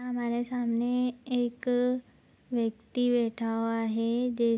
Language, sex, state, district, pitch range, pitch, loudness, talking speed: Hindi, female, Bihar, Araria, 230-245 Hz, 240 Hz, -30 LUFS, 120 wpm